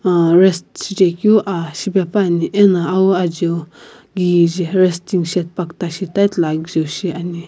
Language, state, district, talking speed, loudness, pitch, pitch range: Sumi, Nagaland, Kohima, 145 wpm, -16 LUFS, 180 Hz, 170-190 Hz